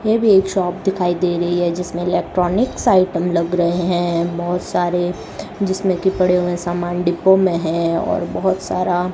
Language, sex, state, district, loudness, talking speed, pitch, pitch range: Hindi, male, Rajasthan, Bikaner, -18 LUFS, 185 wpm, 180 Hz, 175-190 Hz